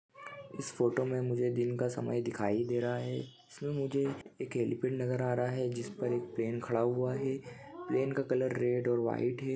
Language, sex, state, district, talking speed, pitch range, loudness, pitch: Hindi, male, Chhattisgarh, Bilaspur, 220 wpm, 120-130 Hz, -34 LUFS, 125 Hz